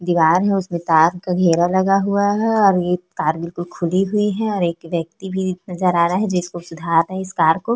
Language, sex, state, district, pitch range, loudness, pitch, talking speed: Hindi, female, Chhattisgarh, Korba, 170-195 Hz, -18 LUFS, 180 Hz, 240 wpm